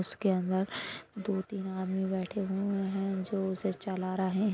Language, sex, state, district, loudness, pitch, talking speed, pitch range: Hindi, female, Uttar Pradesh, Deoria, -33 LUFS, 190 Hz, 170 wpm, 190-200 Hz